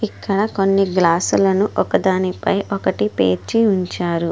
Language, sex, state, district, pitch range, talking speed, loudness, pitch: Telugu, female, Andhra Pradesh, Guntur, 170-200 Hz, 95 wpm, -18 LUFS, 190 Hz